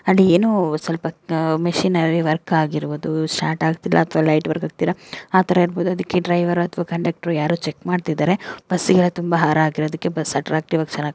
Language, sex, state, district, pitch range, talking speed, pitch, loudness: Kannada, female, Karnataka, Dakshina Kannada, 155-180 Hz, 155 wpm, 170 Hz, -19 LUFS